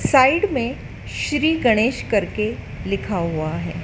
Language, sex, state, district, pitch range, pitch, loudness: Hindi, female, Madhya Pradesh, Dhar, 195-290 Hz, 230 Hz, -20 LUFS